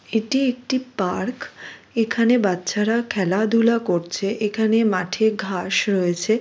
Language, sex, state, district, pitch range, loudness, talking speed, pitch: Bengali, female, West Bengal, Jalpaiguri, 190-230 Hz, -21 LUFS, 110 wpm, 220 Hz